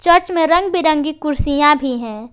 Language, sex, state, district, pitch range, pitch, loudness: Hindi, female, Jharkhand, Garhwa, 285-345 Hz, 305 Hz, -15 LUFS